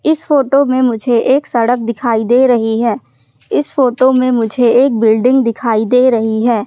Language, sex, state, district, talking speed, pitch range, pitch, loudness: Hindi, female, Madhya Pradesh, Katni, 180 wpm, 225-260 Hz, 240 Hz, -12 LUFS